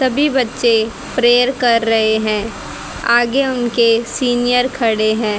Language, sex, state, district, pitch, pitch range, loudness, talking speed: Hindi, female, Haryana, Jhajjar, 235 Hz, 225-250 Hz, -15 LUFS, 120 wpm